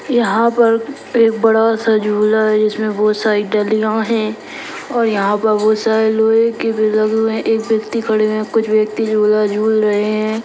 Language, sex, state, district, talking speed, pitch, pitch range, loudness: Hindi, female, Bihar, Saran, 195 wpm, 220 Hz, 215-225 Hz, -15 LUFS